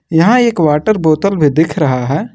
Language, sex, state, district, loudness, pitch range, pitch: Hindi, male, Jharkhand, Ranchi, -12 LUFS, 150-200 Hz, 160 Hz